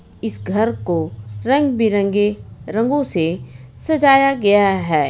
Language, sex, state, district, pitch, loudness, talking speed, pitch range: Hindi, female, Jharkhand, Ranchi, 205 Hz, -17 LUFS, 105 wpm, 160-235 Hz